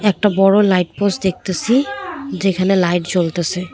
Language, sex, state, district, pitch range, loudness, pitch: Bengali, female, West Bengal, Cooch Behar, 180-205 Hz, -16 LUFS, 195 Hz